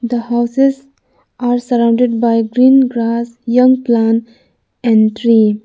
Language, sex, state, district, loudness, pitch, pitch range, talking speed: English, female, Arunachal Pradesh, Lower Dibang Valley, -13 LUFS, 235 Hz, 230-250 Hz, 115 wpm